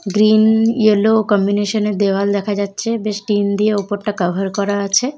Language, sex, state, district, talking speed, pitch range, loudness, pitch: Bengali, male, West Bengal, Jalpaiguri, 160 wpm, 200-215 Hz, -16 LUFS, 205 Hz